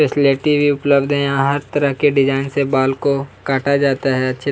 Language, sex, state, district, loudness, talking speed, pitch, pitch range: Hindi, male, Chhattisgarh, Kabirdham, -16 LUFS, 225 wpm, 140 Hz, 135-145 Hz